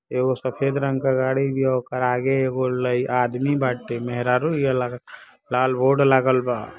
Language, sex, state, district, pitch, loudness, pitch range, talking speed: Bhojpuri, male, Uttar Pradesh, Ghazipur, 130 Hz, -22 LUFS, 125-135 Hz, 185 wpm